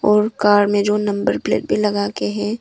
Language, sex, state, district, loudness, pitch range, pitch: Hindi, female, Arunachal Pradesh, Longding, -18 LUFS, 205-210 Hz, 205 Hz